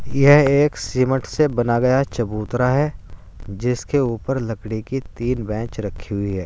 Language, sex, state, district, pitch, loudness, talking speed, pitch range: Hindi, male, Uttar Pradesh, Saharanpur, 120 Hz, -20 LUFS, 160 wpm, 105-135 Hz